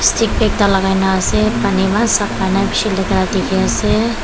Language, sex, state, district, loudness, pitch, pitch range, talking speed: Nagamese, female, Nagaland, Dimapur, -15 LUFS, 195 Hz, 190-215 Hz, 185 wpm